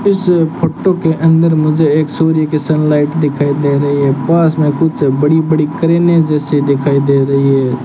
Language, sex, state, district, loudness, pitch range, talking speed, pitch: Hindi, male, Rajasthan, Bikaner, -12 LUFS, 140-160 Hz, 185 wpm, 155 Hz